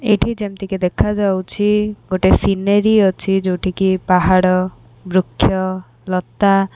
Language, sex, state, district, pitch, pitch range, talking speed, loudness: Odia, female, Odisha, Khordha, 190 Hz, 185-200 Hz, 100 wpm, -16 LUFS